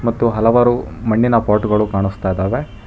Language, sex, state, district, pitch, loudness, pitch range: Kannada, male, Karnataka, Bangalore, 110 Hz, -16 LUFS, 105-115 Hz